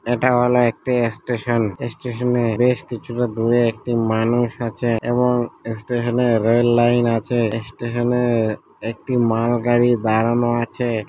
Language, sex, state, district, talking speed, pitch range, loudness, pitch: Bengali, male, West Bengal, Malda, 145 wpm, 115-120 Hz, -19 LUFS, 120 Hz